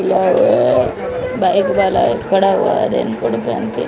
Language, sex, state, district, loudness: Hindi, female, Odisha, Malkangiri, -15 LUFS